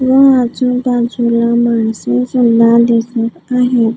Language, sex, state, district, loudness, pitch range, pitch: Marathi, female, Maharashtra, Gondia, -12 LUFS, 230-250 Hz, 235 Hz